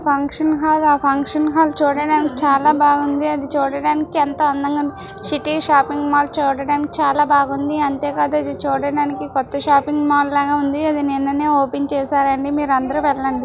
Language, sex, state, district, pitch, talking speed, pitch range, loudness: Telugu, female, Andhra Pradesh, Srikakulam, 290 Hz, 150 wpm, 280-295 Hz, -17 LUFS